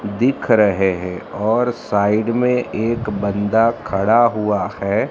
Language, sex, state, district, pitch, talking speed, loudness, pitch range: Hindi, male, Maharashtra, Mumbai Suburban, 105 Hz, 130 wpm, -18 LUFS, 100-115 Hz